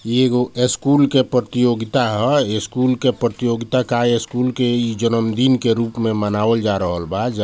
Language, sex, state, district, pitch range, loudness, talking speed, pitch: Bhojpuri, male, Bihar, Gopalganj, 115-125 Hz, -18 LUFS, 175 wpm, 120 Hz